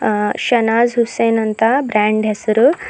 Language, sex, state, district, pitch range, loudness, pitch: Kannada, female, Karnataka, Bidar, 215-235 Hz, -15 LUFS, 225 Hz